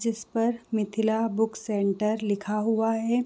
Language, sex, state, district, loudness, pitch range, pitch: Hindi, female, Chhattisgarh, Raigarh, -27 LUFS, 210-225 Hz, 220 Hz